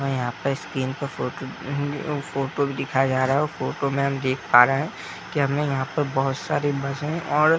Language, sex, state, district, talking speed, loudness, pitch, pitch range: Hindi, male, Bihar, Muzaffarpur, 220 wpm, -24 LUFS, 140 Hz, 135-145 Hz